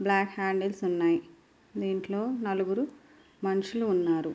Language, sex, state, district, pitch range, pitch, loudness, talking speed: Telugu, female, Andhra Pradesh, Guntur, 185-205 Hz, 195 Hz, -30 LUFS, 95 wpm